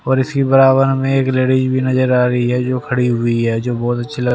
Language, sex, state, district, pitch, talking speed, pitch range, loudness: Hindi, male, Haryana, Rohtak, 130 Hz, 260 wpm, 125-130 Hz, -15 LUFS